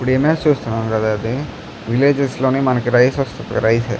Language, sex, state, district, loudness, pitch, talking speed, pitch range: Telugu, male, Andhra Pradesh, Krishna, -17 LUFS, 125 Hz, 195 wpm, 115-140 Hz